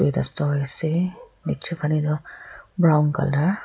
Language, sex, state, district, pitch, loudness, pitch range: Nagamese, female, Nagaland, Kohima, 155 Hz, -20 LUFS, 145-175 Hz